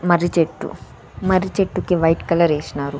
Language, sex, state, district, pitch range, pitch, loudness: Telugu, female, Andhra Pradesh, Sri Satya Sai, 165-185 Hz, 170 Hz, -19 LUFS